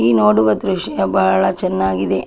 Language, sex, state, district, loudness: Kannada, female, Karnataka, Chamarajanagar, -16 LUFS